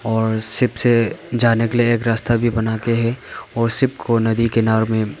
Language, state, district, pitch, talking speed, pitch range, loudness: Hindi, Arunachal Pradesh, Papum Pare, 115 Hz, 195 wpm, 110-120 Hz, -17 LUFS